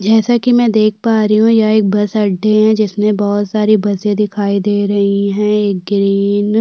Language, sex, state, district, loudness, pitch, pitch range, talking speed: Hindi, female, Uttarakhand, Tehri Garhwal, -13 LUFS, 210 Hz, 205-215 Hz, 200 wpm